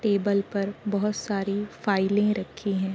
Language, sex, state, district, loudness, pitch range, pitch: Hindi, female, Uttar Pradesh, Deoria, -26 LUFS, 200-210 Hz, 200 Hz